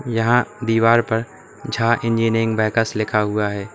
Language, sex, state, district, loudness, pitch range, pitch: Hindi, male, Uttar Pradesh, Lalitpur, -19 LUFS, 110-115 Hz, 115 Hz